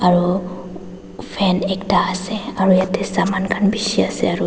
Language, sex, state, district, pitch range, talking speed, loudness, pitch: Nagamese, female, Nagaland, Dimapur, 180-200 Hz, 150 wpm, -18 LUFS, 190 Hz